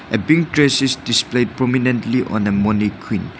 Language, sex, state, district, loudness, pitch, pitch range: English, male, Nagaland, Dimapur, -17 LUFS, 120 Hz, 105-130 Hz